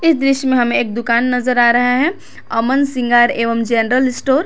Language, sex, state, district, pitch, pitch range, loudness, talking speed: Hindi, female, Jharkhand, Garhwa, 250 Hz, 235-270 Hz, -15 LUFS, 215 wpm